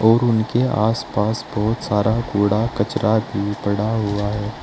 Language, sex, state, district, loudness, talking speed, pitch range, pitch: Hindi, male, Uttar Pradesh, Saharanpur, -20 LUFS, 145 wpm, 105-115 Hz, 110 Hz